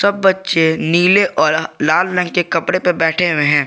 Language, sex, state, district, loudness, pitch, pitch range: Hindi, male, Jharkhand, Garhwa, -14 LUFS, 180 Hz, 165-185 Hz